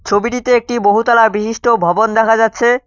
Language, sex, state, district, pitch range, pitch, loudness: Bengali, male, West Bengal, Cooch Behar, 220-240 Hz, 225 Hz, -13 LUFS